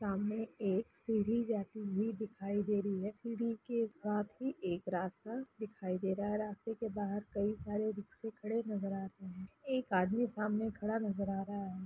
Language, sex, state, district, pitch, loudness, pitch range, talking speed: Hindi, female, Bihar, Gaya, 210 Hz, -38 LUFS, 195-225 Hz, 190 wpm